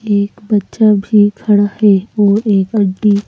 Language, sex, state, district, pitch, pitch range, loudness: Hindi, female, Madhya Pradesh, Bhopal, 205 Hz, 200-210 Hz, -12 LUFS